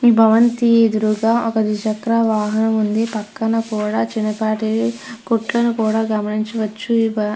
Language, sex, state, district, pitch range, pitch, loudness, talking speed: Telugu, female, Andhra Pradesh, Krishna, 215-230 Hz, 225 Hz, -18 LUFS, 115 wpm